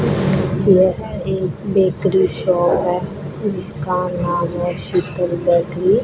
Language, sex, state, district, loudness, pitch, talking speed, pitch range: Hindi, female, Rajasthan, Bikaner, -18 LUFS, 180 Hz, 110 wpm, 175-190 Hz